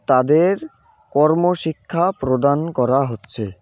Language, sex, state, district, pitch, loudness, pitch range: Bengali, male, West Bengal, Cooch Behar, 150 Hz, -18 LUFS, 130-175 Hz